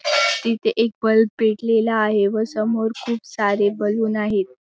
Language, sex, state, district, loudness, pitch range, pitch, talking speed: Marathi, female, Maharashtra, Sindhudurg, -20 LUFS, 210-225 Hz, 220 Hz, 140 wpm